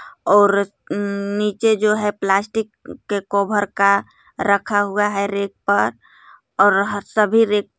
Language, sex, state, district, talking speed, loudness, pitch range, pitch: Hindi, female, Jharkhand, Garhwa, 125 wpm, -18 LUFS, 200-210 Hz, 205 Hz